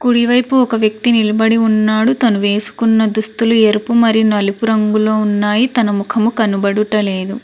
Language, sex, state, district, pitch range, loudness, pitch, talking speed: Telugu, female, Telangana, Hyderabad, 210-230 Hz, -14 LUFS, 220 Hz, 130 wpm